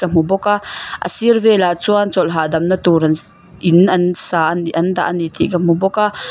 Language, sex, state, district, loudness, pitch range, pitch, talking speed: Mizo, female, Mizoram, Aizawl, -15 LUFS, 165-195 Hz, 175 Hz, 245 wpm